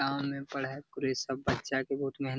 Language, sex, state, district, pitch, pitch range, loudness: Hindi, male, Bihar, Jamui, 135 Hz, 135-140 Hz, -34 LUFS